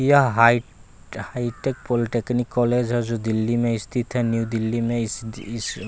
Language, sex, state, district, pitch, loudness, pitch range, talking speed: Hindi, male, Bihar, West Champaran, 115 Hz, -22 LUFS, 115-120 Hz, 165 wpm